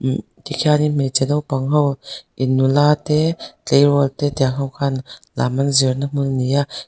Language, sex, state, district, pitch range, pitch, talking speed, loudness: Mizo, female, Mizoram, Aizawl, 135-145 Hz, 140 Hz, 155 wpm, -18 LUFS